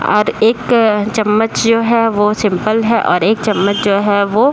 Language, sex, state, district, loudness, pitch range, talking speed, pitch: Hindi, female, Uttar Pradesh, Deoria, -13 LUFS, 205-225 Hz, 200 wpm, 215 Hz